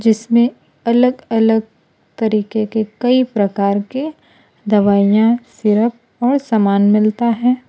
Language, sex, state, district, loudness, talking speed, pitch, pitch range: Hindi, female, Gujarat, Valsad, -15 LUFS, 110 wpm, 225 Hz, 210-240 Hz